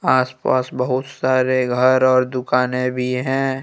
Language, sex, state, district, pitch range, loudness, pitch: Hindi, male, Jharkhand, Deoghar, 125-130 Hz, -18 LUFS, 130 Hz